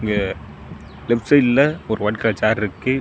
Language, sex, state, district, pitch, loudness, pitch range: Tamil, male, Tamil Nadu, Namakkal, 110 Hz, -19 LUFS, 105-130 Hz